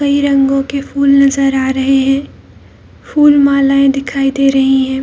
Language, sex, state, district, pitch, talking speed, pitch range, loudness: Hindi, female, Bihar, Jamui, 275 Hz, 165 wpm, 270-280 Hz, -11 LUFS